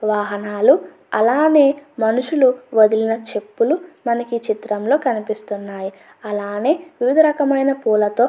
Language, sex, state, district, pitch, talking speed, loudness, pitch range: Telugu, female, Andhra Pradesh, Anantapur, 235 Hz, 100 wpm, -18 LUFS, 210-285 Hz